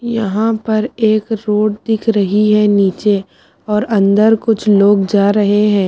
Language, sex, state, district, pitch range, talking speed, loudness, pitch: Hindi, female, Haryana, Charkhi Dadri, 205-220 Hz, 165 wpm, -13 LUFS, 210 Hz